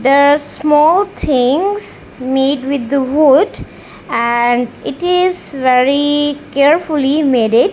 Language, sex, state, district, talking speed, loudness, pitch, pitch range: English, female, Punjab, Kapurthala, 110 wpm, -13 LUFS, 280 Hz, 260-300 Hz